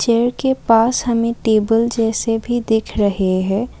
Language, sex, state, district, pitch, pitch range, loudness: Hindi, female, Assam, Kamrup Metropolitan, 225 Hz, 220-240 Hz, -17 LUFS